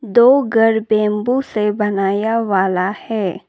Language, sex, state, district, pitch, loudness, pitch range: Hindi, female, Arunachal Pradesh, Lower Dibang Valley, 215 Hz, -16 LUFS, 200-230 Hz